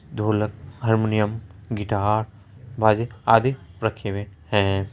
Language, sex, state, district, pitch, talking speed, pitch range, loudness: Hindi, male, Bihar, Araria, 110 Hz, 95 wpm, 105-115 Hz, -23 LUFS